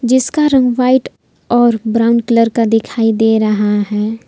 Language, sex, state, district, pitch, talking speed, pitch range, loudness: Hindi, female, Jharkhand, Palamu, 230 Hz, 155 wpm, 220-245 Hz, -13 LUFS